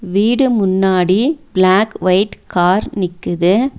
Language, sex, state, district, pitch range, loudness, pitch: Tamil, female, Tamil Nadu, Nilgiris, 185-220 Hz, -15 LUFS, 190 Hz